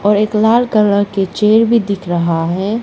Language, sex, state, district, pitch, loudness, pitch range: Hindi, female, Arunachal Pradesh, Lower Dibang Valley, 210 Hz, -13 LUFS, 195-220 Hz